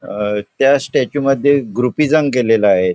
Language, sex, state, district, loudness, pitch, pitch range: Marathi, male, Goa, North and South Goa, -15 LUFS, 130 Hz, 105-140 Hz